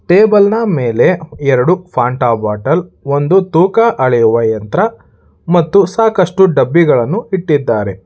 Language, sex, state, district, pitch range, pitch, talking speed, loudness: Kannada, male, Karnataka, Bangalore, 125-190 Hz, 165 Hz, 105 wpm, -12 LUFS